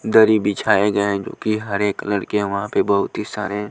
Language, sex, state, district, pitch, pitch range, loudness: Hindi, male, Punjab, Pathankot, 105 Hz, 100-105 Hz, -19 LUFS